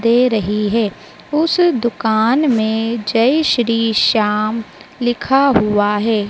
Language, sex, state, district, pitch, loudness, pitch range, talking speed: Hindi, female, Madhya Pradesh, Dhar, 230 Hz, -15 LUFS, 215-255 Hz, 115 wpm